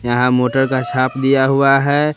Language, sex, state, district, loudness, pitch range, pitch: Hindi, male, Bihar, West Champaran, -15 LUFS, 130-135 Hz, 135 Hz